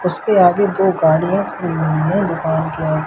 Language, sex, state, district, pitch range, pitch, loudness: Hindi, male, Madhya Pradesh, Umaria, 160-190 Hz, 170 Hz, -16 LUFS